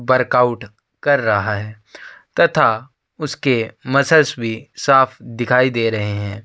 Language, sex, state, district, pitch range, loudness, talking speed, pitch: Hindi, male, Uttar Pradesh, Jyotiba Phule Nagar, 110-130 Hz, -17 LUFS, 120 wpm, 120 Hz